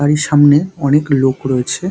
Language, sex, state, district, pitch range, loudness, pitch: Bengali, male, West Bengal, Dakshin Dinajpur, 135-150 Hz, -13 LUFS, 145 Hz